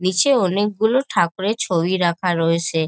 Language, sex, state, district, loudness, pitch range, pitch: Bengali, female, West Bengal, North 24 Parganas, -19 LUFS, 170-210 Hz, 185 Hz